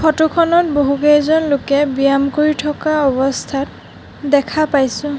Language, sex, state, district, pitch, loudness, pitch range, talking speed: Assamese, female, Assam, Sonitpur, 290 Hz, -15 LUFS, 275-310 Hz, 115 wpm